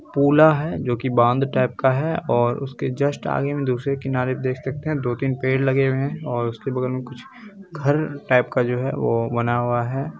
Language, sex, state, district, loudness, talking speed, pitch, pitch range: Hindi, male, Bihar, Bhagalpur, -21 LUFS, 240 wpm, 130 Hz, 125-140 Hz